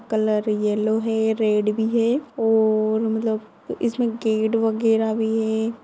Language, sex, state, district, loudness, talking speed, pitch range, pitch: Hindi, female, Maharashtra, Dhule, -21 LUFS, 135 wpm, 215-225 Hz, 220 Hz